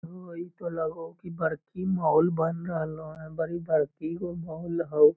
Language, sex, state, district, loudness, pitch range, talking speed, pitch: Magahi, male, Bihar, Lakhisarai, -29 LUFS, 160-170 Hz, 185 wpm, 165 Hz